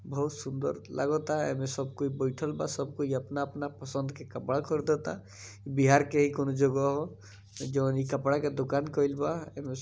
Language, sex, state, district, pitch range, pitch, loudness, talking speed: Bhojpuri, male, Bihar, East Champaran, 135-145 Hz, 140 Hz, -31 LUFS, 190 wpm